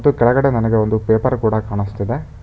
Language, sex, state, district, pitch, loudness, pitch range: Kannada, male, Karnataka, Bangalore, 115 Hz, -17 LUFS, 110-130 Hz